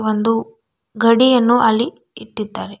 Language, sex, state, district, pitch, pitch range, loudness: Kannada, female, Karnataka, Bidar, 230 Hz, 220-245 Hz, -16 LUFS